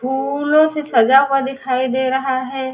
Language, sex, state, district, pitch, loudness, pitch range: Hindi, female, Chhattisgarh, Raipur, 265 Hz, -16 LUFS, 260-275 Hz